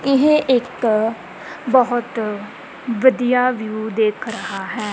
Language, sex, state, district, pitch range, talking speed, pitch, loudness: Punjabi, female, Punjab, Kapurthala, 215-250 Hz, 95 wpm, 230 Hz, -18 LUFS